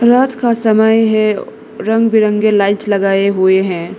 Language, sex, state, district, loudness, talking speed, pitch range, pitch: Hindi, female, Arunachal Pradesh, Lower Dibang Valley, -13 LUFS, 150 wpm, 200-225 Hz, 215 Hz